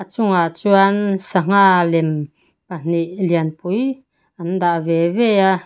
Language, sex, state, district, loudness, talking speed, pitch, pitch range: Mizo, female, Mizoram, Aizawl, -17 LUFS, 125 wpm, 185 Hz, 170-195 Hz